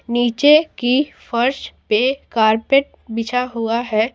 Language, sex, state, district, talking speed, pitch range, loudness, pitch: Hindi, female, Bihar, Patna, 115 wpm, 230-270 Hz, -17 LUFS, 240 Hz